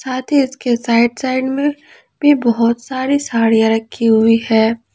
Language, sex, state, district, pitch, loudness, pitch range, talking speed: Hindi, female, Jharkhand, Ranchi, 240 Hz, -15 LUFS, 230-265 Hz, 155 wpm